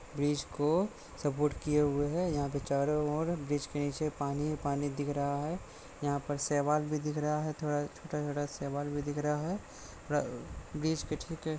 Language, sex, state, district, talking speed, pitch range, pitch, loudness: Hindi, male, Jharkhand, Sahebganj, 195 wpm, 145-150 Hz, 150 Hz, -34 LUFS